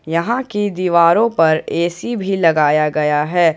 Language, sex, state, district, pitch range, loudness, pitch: Hindi, male, Jharkhand, Ranchi, 155-200 Hz, -16 LUFS, 170 Hz